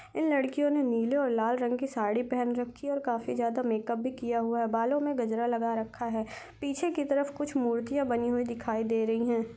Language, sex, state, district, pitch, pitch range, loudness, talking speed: Hindi, female, Chhattisgarh, Rajnandgaon, 240 Hz, 230-275 Hz, -30 LUFS, 225 wpm